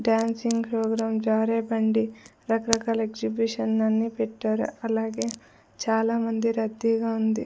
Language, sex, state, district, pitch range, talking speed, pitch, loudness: Telugu, female, Andhra Pradesh, Sri Satya Sai, 220-230 Hz, 90 wpm, 225 Hz, -26 LUFS